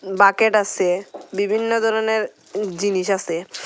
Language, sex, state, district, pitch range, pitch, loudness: Bengali, female, Tripura, Unakoti, 190-220 Hz, 200 Hz, -20 LUFS